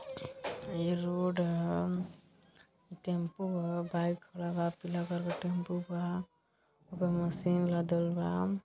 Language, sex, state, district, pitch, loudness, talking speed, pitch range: Hindi, female, Uttar Pradesh, Gorakhpur, 175 Hz, -35 LUFS, 105 wpm, 170-175 Hz